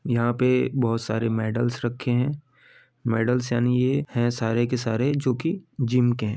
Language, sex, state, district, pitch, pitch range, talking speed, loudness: Bhojpuri, male, Uttar Pradesh, Ghazipur, 120 Hz, 115-125 Hz, 180 wpm, -24 LUFS